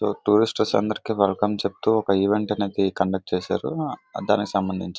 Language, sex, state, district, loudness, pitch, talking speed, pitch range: Telugu, male, Andhra Pradesh, Visakhapatnam, -23 LUFS, 100 Hz, 145 wpm, 95-105 Hz